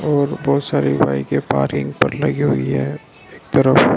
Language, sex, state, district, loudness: Hindi, male, Arunachal Pradesh, Lower Dibang Valley, -18 LUFS